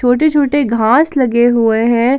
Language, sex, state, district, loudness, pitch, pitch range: Hindi, female, Jharkhand, Palamu, -12 LUFS, 245 Hz, 235-285 Hz